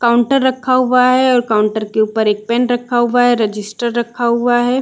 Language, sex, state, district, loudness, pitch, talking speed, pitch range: Hindi, female, Chhattisgarh, Balrampur, -14 LUFS, 240 Hz, 210 wpm, 220-250 Hz